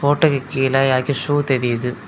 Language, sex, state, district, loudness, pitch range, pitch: Tamil, male, Tamil Nadu, Kanyakumari, -18 LUFS, 130-145 Hz, 135 Hz